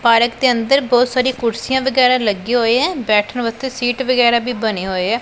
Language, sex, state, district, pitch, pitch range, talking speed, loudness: Punjabi, female, Punjab, Pathankot, 245 Hz, 230-255 Hz, 205 wpm, -16 LUFS